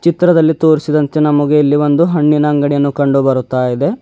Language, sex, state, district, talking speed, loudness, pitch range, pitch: Kannada, male, Karnataka, Bidar, 150 wpm, -12 LUFS, 140-160 Hz, 150 Hz